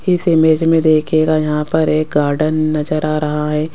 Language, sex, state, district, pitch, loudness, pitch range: Hindi, female, Rajasthan, Jaipur, 155 Hz, -15 LUFS, 150-160 Hz